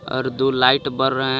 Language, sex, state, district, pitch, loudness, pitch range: Hindi, male, Jharkhand, Garhwa, 130 Hz, -18 LUFS, 130-135 Hz